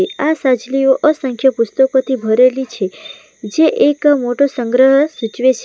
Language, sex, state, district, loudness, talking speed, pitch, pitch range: Gujarati, female, Gujarat, Valsad, -14 LUFS, 150 wpm, 265 Hz, 250-285 Hz